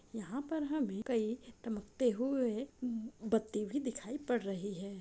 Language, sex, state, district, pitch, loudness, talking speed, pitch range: Hindi, female, Bihar, Saran, 235 Hz, -38 LUFS, 155 wpm, 215-260 Hz